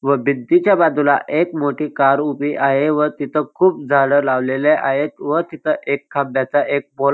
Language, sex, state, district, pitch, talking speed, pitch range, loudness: Marathi, male, Maharashtra, Dhule, 145 Hz, 175 wpm, 140-150 Hz, -17 LUFS